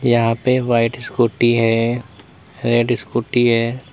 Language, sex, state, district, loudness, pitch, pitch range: Hindi, male, Uttar Pradesh, Lalitpur, -17 LUFS, 120 Hz, 115-120 Hz